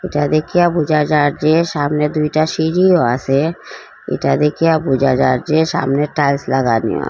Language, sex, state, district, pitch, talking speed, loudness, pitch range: Bengali, female, Assam, Hailakandi, 150 Hz, 160 wpm, -15 LUFS, 140-160 Hz